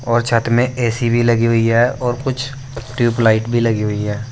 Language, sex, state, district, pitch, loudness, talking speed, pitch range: Hindi, male, Uttar Pradesh, Saharanpur, 120 Hz, -16 LUFS, 210 wpm, 115-125 Hz